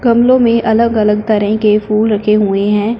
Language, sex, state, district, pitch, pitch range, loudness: Hindi, female, Punjab, Fazilka, 215 Hz, 210-230 Hz, -12 LUFS